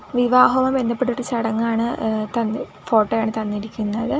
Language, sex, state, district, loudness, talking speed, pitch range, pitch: Malayalam, female, Kerala, Kollam, -20 LUFS, 100 wpm, 220-245 Hz, 230 Hz